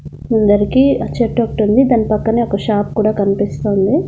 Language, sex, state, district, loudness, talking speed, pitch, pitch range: Telugu, female, Andhra Pradesh, Annamaya, -14 LUFS, 130 wpm, 215 Hz, 205-235 Hz